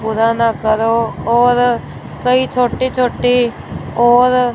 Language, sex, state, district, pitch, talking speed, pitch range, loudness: Hindi, female, Punjab, Fazilka, 245 Hz, 90 wpm, 230-250 Hz, -14 LUFS